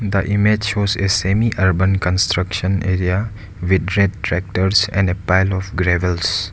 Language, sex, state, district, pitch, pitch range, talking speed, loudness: English, male, Arunachal Pradesh, Lower Dibang Valley, 95 Hz, 90-100 Hz, 145 wpm, -17 LUFS